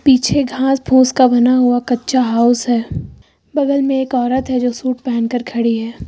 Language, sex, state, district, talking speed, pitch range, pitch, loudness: Hindi, female, Uttar Pradesh, Lucknow, 180 wpm, 240-260 Hz, 250 Hz, -15 LUFS